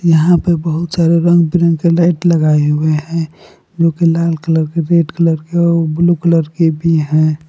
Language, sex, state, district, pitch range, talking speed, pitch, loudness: Hindi, male, Jharkhand, Palamu, 160-170 Hz, 185 wpm, 165 Hz, -13 LUFS